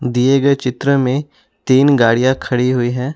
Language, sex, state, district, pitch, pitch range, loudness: Hindi, male, Assam, Sonitpur, 130 Hz, 125-140 Hz, -14 LUFS